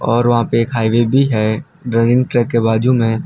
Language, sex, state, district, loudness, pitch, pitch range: Hindi, male, Gujarat, Valsad, -15 LUFS, 120 Hz, 115-125 Hz